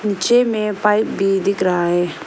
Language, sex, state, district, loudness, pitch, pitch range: Hindi, female, Arunachal Pradesh, Lower Dibang Valley, -17 LUFS, 200 Hz, 185-215 Hz